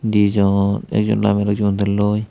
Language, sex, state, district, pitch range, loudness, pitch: Chakma, male, Tripura, Dhalai, 100-105 Hz, -17 LUFS, 105 Hz